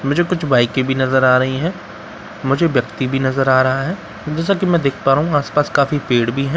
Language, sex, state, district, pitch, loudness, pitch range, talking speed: Hindi, male, Bihar, Katihar, 135 Hz, -16 LUFS, 130-155 Hz, 245 wpm